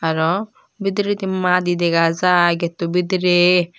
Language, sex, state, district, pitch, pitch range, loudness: Chakma, female, Tripura, Dhalai, 180 Hz, 170-190 Hz, -18 LUFS